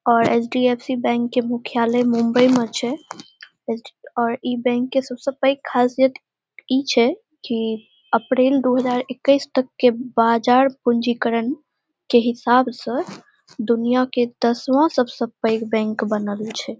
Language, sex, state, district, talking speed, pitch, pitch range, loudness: Maithili, female, Bihar, Saharsa, 135 wpm, 245 Hz, 235-260 Hz, -20 LUFS